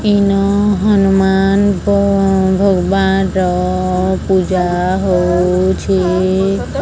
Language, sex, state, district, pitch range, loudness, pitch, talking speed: Odia, female, Odisha, Sambalpur, 185-195 Hz, -13 LUFS, 190 Hz, 60 wpm